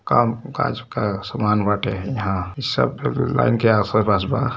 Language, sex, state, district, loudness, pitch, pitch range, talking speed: Hindi, male, Uttar Pradesh, Varanasi, -21 LUFS, 105 Hz, 100-115 Hz, 170 wpm